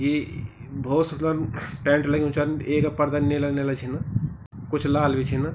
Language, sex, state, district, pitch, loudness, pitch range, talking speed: Garhwali, male, Uttarakhand, Tehri Garhwal, 145 Hz, -24 LUFS, 135-150 Hz, 175 wpm